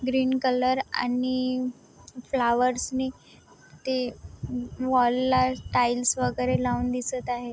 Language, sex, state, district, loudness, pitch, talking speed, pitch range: Marathi, female, Maharashtra, Chandrapur, -26 LUFS, 250 Hz, 105 wpm, 245-255 Hz